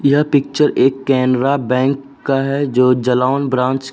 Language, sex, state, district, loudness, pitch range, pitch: Hindi, male, Uttar Pradesh, Jalaun, -15 LUFS, 130-140 Hz, 135 Hz